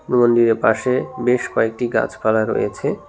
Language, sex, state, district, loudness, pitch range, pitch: Bengali, male, West Bengal, Cooch Behar, -18 LUFS, 110-125 Hz, 120 Hz